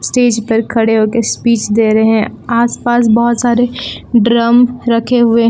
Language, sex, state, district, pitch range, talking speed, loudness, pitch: Hindi, female, Jharkhand, Palamu, 225-240 Hz, 155 wpm, -12 LUFS, 235 Hz